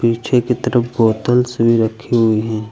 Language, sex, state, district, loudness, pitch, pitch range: Hindi, male, Uttar Pradesh, Lucknow, -16 LUFS, 115 Hz, 110-120 Hz